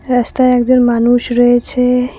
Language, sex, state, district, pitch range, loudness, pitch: Bengali, female, West Bengal, Cooch Behar, 245-250 Hz, -12 LUFS, 245 Hz